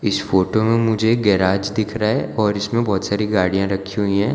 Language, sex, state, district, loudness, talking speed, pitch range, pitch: Hindi, male, Gujarat, Valsad, -19 LUFS, 235 wpm, 100-110 Hz, 105 Hz